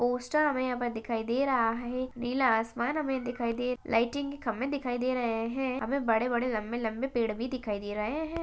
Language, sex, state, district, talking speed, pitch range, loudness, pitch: Hindi, female, Maharashtra, Chandrapur, 220 wpm, 230-260 Hz, -30 LUFS, 245 Hz